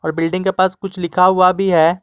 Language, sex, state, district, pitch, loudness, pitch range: Hindi, male, Jharkhand, Garhwa, 185 Hz, -15 LUFS, 170-190 Hz